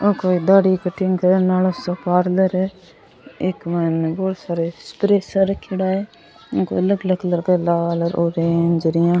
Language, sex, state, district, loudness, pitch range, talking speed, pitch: Rajasthani, female, Rajasthan, Churu, -19 LUFS, 170-190 Hz, 165 wpm, 185 Hz